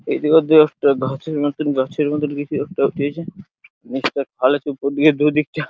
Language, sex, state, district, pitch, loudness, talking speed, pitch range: Bengali, male, West Bengal, Purulia, 145 Hz, -18 LUFS, 170 wpm, 140-155 Hz